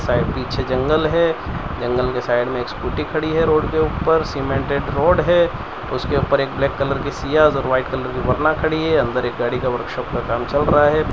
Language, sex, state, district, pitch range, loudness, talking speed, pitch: Hindi, male, Gujarat, Valsad, 130-155 Hz, -19 LUFS, 225 wpm, 140 Hz